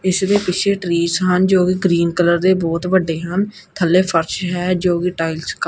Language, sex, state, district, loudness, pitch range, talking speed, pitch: Punjabi, female, Punjab, Kapurthala, -17 LUFS, 170-185 Hz, 210 wpm, 180 Hz